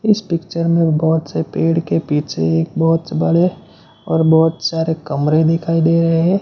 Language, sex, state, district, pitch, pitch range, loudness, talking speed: Hindi, male, Gujarat, Gandhinagar, 165 Hz, 160-165 Hz, -16 LUFS, 185 wpm